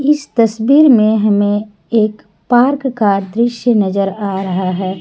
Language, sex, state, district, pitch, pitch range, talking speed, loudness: Hindi, female, Jharkhand, Garhwa, 215 Hz, 200-240 Hz, 145 wpm, -13 LUFS